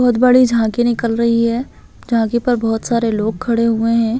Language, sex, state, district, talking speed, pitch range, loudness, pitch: Hindi, female, Chhattisgarh, Bastar, 200 wpm, 225-240 Hz, -16 LUFS, 230 Hz